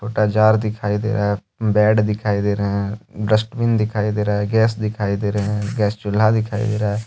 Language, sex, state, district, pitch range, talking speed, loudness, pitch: Hindi, male, Jharkhand, Deoghar, 105-110 Hz, 230 wpm, -19 LUFS, 105 Hz